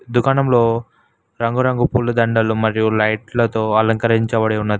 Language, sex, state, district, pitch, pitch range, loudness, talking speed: Telugu, male, Telangana, Mahabubabad, 115 Hz, 110-120 Hz, -17 LUFS, 100 wpm